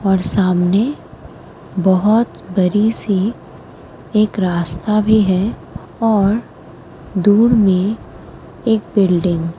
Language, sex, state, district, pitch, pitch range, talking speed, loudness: Hindi, female, Uttar Pradesh, Muzaffarnagar, 200 Hz, 185-215 Hz, 95 wpm, -16 LUFS